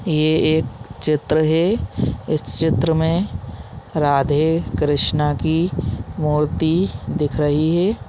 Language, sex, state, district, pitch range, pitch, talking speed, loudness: Hindi, male, Chhattisgarh, Balrampur, 145-160 Hz, 155 Hz, 110 wpm, -19 LUFS